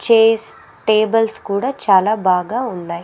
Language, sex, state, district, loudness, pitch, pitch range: Telugu, female, Andhra Pradesh, Sri Satya Sai, -16 LUFS, 215 Hz, 190-225 Hz